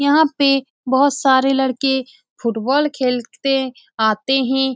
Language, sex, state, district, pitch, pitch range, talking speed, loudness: Hindi, female, Bihar, Saran, 265 Hz, 255-280 Hz, 125 wpm, -18 LUFS